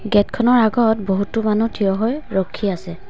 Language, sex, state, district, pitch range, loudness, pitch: Assamese, female, Assam, Sonitpur, 195-230 Hz, -18 LUFS, 215 Hz